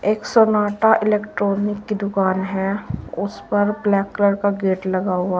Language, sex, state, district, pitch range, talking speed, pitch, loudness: Hindi, female, Uttar Pradesh, Saharanpur, 190-210 Hz, 155 wpm, 200 Hz, -20 LUFS